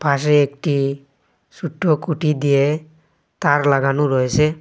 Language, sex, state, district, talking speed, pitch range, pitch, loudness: Bengali, male, Assam, Hailakandi, 105 wpm, 140-155 Hz, 145 Hz, -18 LUFS